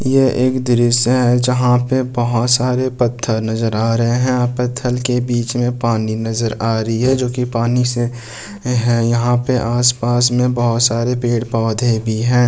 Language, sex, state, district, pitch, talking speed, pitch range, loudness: Hindi, male, Bihar, Bhagalpur, 120 Hz, 180 wpm, 115-125 Hz, -16 LUFS